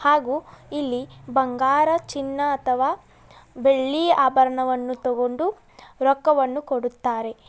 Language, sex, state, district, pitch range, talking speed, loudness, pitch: Kannada, female, Karnataka, Belgaum, 255-290 Hz, 80 wpm, -22 LUFS, 270 Hz